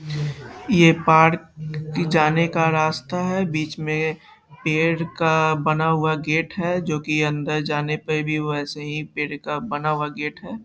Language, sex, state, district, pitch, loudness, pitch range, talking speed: Hindi, male, Bihar, Saharsa, 155 Hz, -21 LUFS, 150-165 Hz, 160 wpm